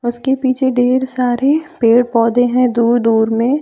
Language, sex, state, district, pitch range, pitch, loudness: Hindi, female, Jharkhand, Deoghar, 235-260 Hz, 245 Hz, -14 LUFS